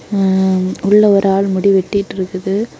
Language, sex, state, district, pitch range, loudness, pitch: Tamil, female, Tamil Nadu, Kanyakumari, 190-200 Hz, -14 LUFS, 195 Hz